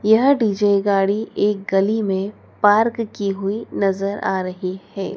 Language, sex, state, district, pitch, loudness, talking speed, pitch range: Hindi, female, Madhya Pradesh, Dhar, 200 Hz, -19 LUFS, 150 wpm, 195-215 Hz